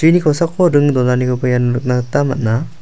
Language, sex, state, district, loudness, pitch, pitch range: Garo, male, Meghalaya, South Garo Hills, -15 LUFS, 130 Hz, 125-150 Hz